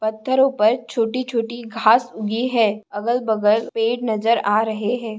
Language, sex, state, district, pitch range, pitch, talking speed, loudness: Hindi, female, Maharashtra, Sindhudurg, 215-240 Hz, 225 Hz, 160 wpm, -20 LUFS